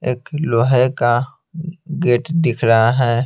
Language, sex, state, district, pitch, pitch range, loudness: Hindi, male, Bihar, Patna, 125 Hz, 120-160 Hz, -16 LUFS